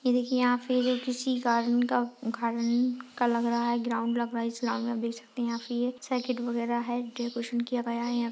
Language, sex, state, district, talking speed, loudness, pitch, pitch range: Hindi, female, Goa, North and South Goa, 230 wpm, -29 LUFS, 240 Hz, 235-250 Hz